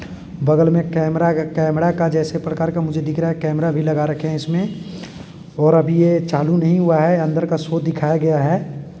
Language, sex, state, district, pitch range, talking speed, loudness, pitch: Hindi, male, Bihar, East Champaran, 155-170 Hz, 220 wpm, -18 LUFS, 165 Hz